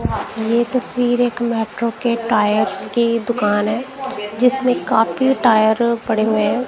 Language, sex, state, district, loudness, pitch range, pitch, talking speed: Hindi, female, Punjab, Kapurthala, -18 LUFS, 215-245 Hz, 235 Hz, 135 wpm